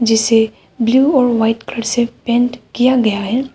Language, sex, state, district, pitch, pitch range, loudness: Hindi, female, Arunachal Pradesh, Papum Pare, 235 Hz, 225-250 Hz, -15 LUFS